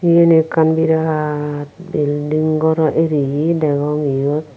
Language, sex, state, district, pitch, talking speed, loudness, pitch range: Chakma, female, Tripura, Unakoti, 155 Hz, 105 wpm, -16 LUFS, 145-160 Hz